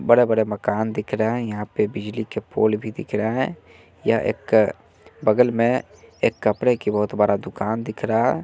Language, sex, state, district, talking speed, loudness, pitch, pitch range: Hindi, male, Bihar, West Champaran, 200 wpm, -22 LUFS, 110 Hz, 105-115 Hz